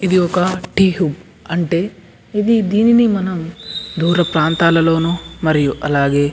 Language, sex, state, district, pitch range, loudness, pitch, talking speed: Telugu, male, Andhra Pradesh, Anantapur, 165-190 Hz, -16 LUFS, 175 Hz, 115 wpm